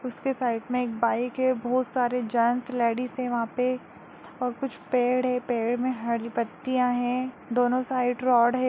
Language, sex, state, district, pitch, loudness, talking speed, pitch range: Hindi, female, Bihar, Darbhanga, 250 Hz, -26 LUFS, 180 wpm, 235-255 Hz